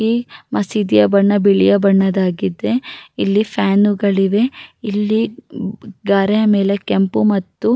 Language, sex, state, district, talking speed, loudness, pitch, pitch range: Kannada, female, Karnataka, Raichur, 70 wpm, -16 LUFS, 205 Hz, 195-215 Hz